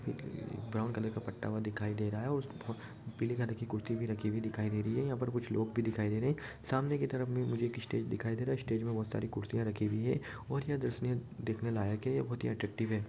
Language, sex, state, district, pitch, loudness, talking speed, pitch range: Hindi, male, Bihar, Jamui, 115 Hz, -37 LUFS, 255 wpm, 110-125 Hz